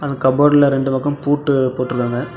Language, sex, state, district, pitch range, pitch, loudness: Tamil, male, Tamil Nadu, Namakkal, 130-145 Hz, 140 Hz, -16 LUFS